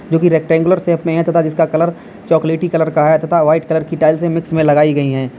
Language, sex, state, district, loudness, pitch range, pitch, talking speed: Hindi, male, Uttar Pradesh, Lalitpur, -14 LUFS, 155-170 Hz, 160 Hz, 265 wpm